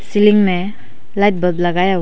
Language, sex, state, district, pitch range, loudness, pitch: Hindi, female, Arunachal Pradesh, Papum Pare, 180-205 Hz, -15 LUFS, 190 Hz